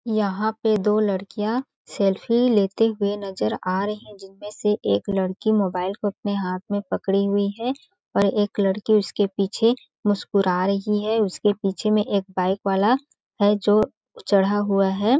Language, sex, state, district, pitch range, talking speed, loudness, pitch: Hindi, female, Chhattisgarh, Balrampur, 195-215 Hz, 160 wpm, -22 LUFS, 205 Hz